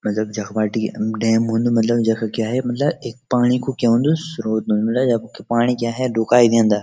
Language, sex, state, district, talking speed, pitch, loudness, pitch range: Garhwali, male, Uttarakhand, Uttarkashi, 210 wpm, 115 Hz, -19 LUFS, 110-125 Hz